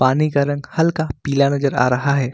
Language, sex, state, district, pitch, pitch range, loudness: Hindi, male, Jharkhand, Ranchi, 140 Hz, 135-150 Hz, -18 LUFS